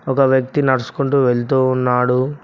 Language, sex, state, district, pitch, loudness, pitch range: Telugu, male, Telangana, Mahabubabad, 130 Hz, -16 LUFS, 125-135 Hz